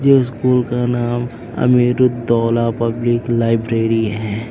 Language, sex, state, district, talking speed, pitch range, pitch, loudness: Hindi, female, Uttar Pradesh, Lucknow, 105 wpm, 115-120 Hz, 120 Hz, -17 LUFS